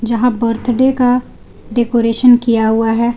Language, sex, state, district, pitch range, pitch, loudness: Hindi, female, Jharkhand, Garhwa, 230-245 Hz, 235 Hz, -13 LUFS